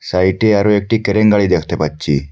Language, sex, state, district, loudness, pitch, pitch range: Bengali, male, Assam, Hailakandi, -14 LUFS, 100 Hz, 85-105 Hz